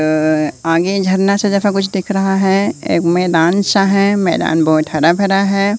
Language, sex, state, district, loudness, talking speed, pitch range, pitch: Hindi, male, Madhya Pradesh, Katni, -14 LUFS, 185 wpm, 165-195 Hz, 190 Hz